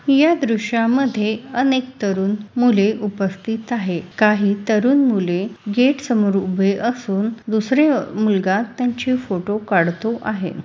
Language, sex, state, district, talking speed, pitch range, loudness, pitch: Marathi, female, Maharashtra, Sindhudurg, 120 wpm, 200-245 Hz, -19 LUFS, 215 Hz